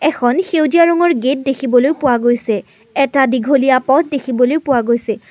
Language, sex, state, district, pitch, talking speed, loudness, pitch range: Assamese, female, Assam, Kamrup Metropolitan, 265 Hz, 145 wpm, -14 LUFS, 245-290 Hz